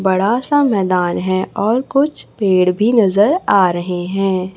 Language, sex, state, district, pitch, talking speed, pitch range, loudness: Hindi, female, Chhattisgarh, Raipur, 195 Hz, 160 wpm, 185-225 Hz, -15 LUFS